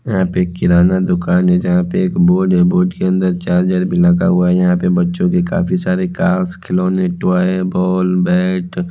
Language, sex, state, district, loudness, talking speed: Hindi, male, Chhattisgarh, Raipur, -14 LUFS, 195 wpm